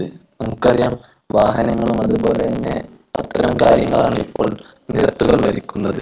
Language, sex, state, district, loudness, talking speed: Malayalam, male, Kerala, Kozhikode, -17 LUFS, 90 wpm